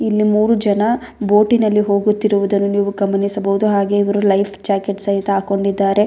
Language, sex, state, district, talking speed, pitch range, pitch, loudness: Kannada, female, Karnataka, Bellary, 130 wpm, 200-210 Hz, 200 Hz, -16 LUFS